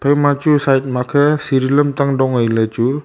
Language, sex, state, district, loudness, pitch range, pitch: Wancho, male, Arunachal Pradesh, Longding, -15 LUFS, 130-145 Hz, 140 Hz